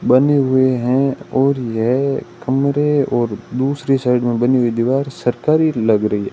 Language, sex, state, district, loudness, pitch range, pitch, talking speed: Hindi, male, Rajasthan, Bikaner, -17 LUFS, 120-140 Hz, 130 Hz, 160 wpm